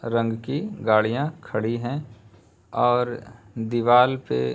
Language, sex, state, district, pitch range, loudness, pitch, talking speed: Hindi, male, Uttar Pradesh, Hamirpur, 110-125 Hz, -23 LUFS, 115 Hz, 120 wpm